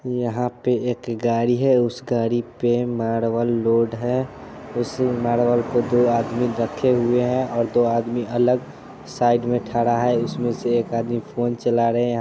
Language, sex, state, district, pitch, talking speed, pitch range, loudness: Hindi, male, Bihar, Muzaffarpur, 120 Hz, 165 wpm, 115-125 Hz, -21 LUFS